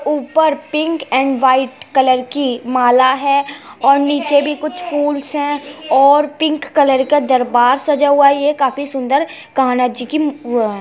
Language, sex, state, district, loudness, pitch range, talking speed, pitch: Hindi, female, Uttar Pradesh, Muzaffarnagar, -14 LUFS, 260-295 Hz, 165 wpm, 280 Hz